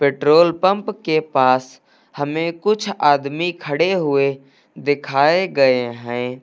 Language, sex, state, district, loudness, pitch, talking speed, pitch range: Hindi, male, Uttar Pradesh, Lucknow, -18 LUFS, 145 Hz, 110 wpm, 135-175 Hz